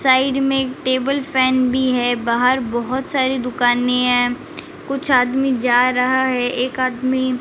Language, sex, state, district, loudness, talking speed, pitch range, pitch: Hindi, female, Rajasthan, Bikaner, -17 LUFS, 160 wpm, 250-265 Hz, 255 Hz